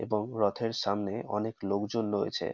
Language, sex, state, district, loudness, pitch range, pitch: Bengali, male, West Bengal, North 24 Parganas, -32 LUFS, 100-115 Hz, 105 Hz